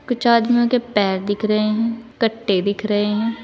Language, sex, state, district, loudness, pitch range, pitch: Hindi, female, Uttar Pradesh, Saharanpur, -19 LUFS, 205-235 Hz, 225 Hz